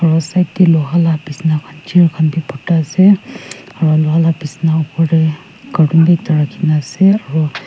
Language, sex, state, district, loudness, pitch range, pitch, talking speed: Nagamese, female, Nagaland, Kohima, -13 LUFS, 155-175 Hz, 160 Hz, 190 wpm